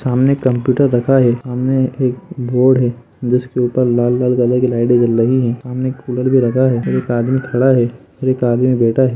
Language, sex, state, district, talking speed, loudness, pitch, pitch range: Hindi, male, Jharkhand, Sahebganj, 210 wpm, -15 LUFS, 125 Hz, 120-130 Hz